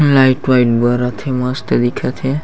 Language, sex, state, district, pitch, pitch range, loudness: Chhattisgarhi, male, Chhattisgarh, Bastar, 130 Hz, 125-135 Hz, -15 LUFS